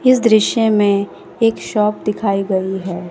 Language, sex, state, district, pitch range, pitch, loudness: Hindi, female, Bihar, West Champaran, 195-225 Hz, 210 Hz, -16 LUFS